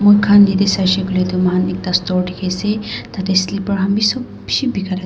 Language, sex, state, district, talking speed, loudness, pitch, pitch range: Nagamese, female, Nagaland, Dimapur, 190 wpm, -16 LUFS, 190 Hz, 185-205 Hz